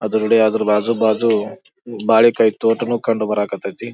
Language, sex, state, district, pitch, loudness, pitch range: Kannada, male, Karnataka, Bijapur, 110 Hz, -17 LUFS, 105-115 Hz